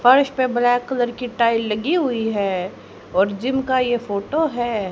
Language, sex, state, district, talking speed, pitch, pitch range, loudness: Hindi, female, Haryana, Jhajjar, 185 wpm, 240 Hz, 215-260 Hz, -20 LUFS